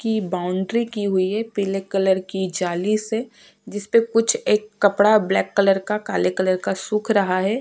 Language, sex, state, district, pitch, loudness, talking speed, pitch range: Hindi, female, Uttarakhand, Tehri Garhwal, 200 Hz, -21 LUFS, 180 wpm, 190-215 Hz